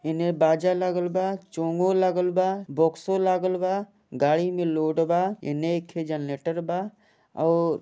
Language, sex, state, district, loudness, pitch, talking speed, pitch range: Bhojpuri, male, Jharkhand, Sahebganj, -25 LUFS, 175 Hz, 145 wpm, 160-185 Hz